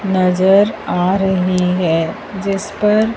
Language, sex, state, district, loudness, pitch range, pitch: Hindi, male, Madhya Pradesh, Dhar, -15 LUFS, 180-205 Hz, 190 Hz